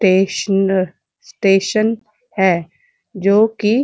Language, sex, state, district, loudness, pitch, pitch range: Hindi, female, Uttar Pradesh, Muzaffarnagar, -16 LUFS, 195 Hz, 190-215 Hz